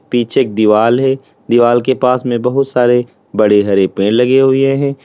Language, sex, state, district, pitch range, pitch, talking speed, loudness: Hindi, male, Uttar Pradesh, Lalitpur, 110-130 Hz, 125 Hz, 190 wpm, -12 LUFS